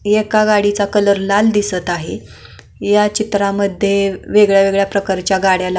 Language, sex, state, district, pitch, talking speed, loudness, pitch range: Marathi, female, Maharashtra, Pune, 200 Hz, 105 wpm, -14 LUFS, 185-205 Hz